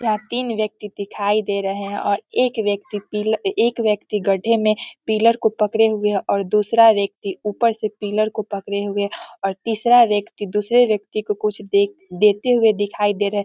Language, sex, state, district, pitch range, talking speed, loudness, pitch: Hindi, female, Bihar, Muzaffarpur, 205-225 Hz, 195 wpm, -19 LUFS, 210 Hz